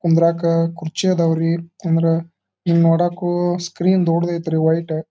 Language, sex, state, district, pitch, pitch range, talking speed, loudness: Kannada, male, Karnataka, Dharwad, 170 Hz, 165-175 Hz, 155 wpm, -18 LUFS